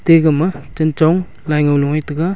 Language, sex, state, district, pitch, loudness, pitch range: Wancho, male, Arunachal Pradesh, Longding, 155 Hz, -15 LUFS, 150-165 Hz